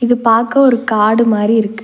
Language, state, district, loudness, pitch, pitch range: Tamil, Tamil Nadu, Nilgiris, -12 LUFS, 225 Hz, 215-240 Hz